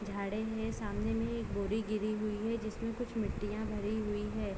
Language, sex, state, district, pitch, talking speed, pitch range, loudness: Hindi, female, Jharkhand, Jamtara, 215 Hz, 195 wpm, 205-220 Hz, -37 LUFS